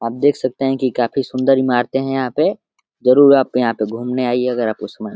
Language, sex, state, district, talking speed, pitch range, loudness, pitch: Hindi, male, Uttar Pradesh, Deoria, 255 wpm, 120-135 Hz, -17 LUFS, 130 Hz